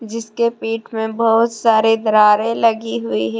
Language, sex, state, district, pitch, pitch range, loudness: Hindi, female, Jharkhand, Deoghar, 225 Hz, 215-230 Hz, -16 LUFS